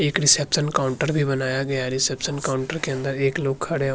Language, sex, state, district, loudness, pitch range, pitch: Hindi, male, Uttarakhand, Tehri Garhwal, -22 LUFS, 135-150 Hz, 135 Hz